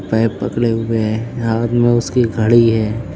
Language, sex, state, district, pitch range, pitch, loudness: Hindi, female, Uttar Pradesh, Lucknow, 110-120 Hz, 115 Hz, -16 LUFS